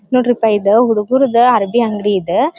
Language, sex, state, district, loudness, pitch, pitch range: Kannada, female, Karnataka, Dharwad, -13 LUFS, 235 Hz, 210-250 Hz